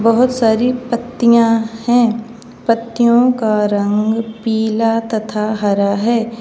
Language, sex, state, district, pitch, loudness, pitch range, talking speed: Hindi, female, Uttar Pradesh, Lalitpur, 230 Hz, -15 LUFS, 220-235 Hz, 105 wpm